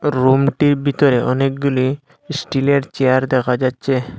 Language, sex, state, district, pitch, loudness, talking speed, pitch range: Bengali, male, Assam, Hailakandi, 135 Hz, -17 LUFS, 100 wpm, 130-140 Hz